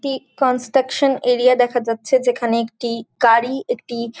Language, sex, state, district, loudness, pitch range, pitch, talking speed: Bengali, female, West Bengal, Jhargram, -18 LUFS, 235-270 Hz, 245 Hz, 145 wpm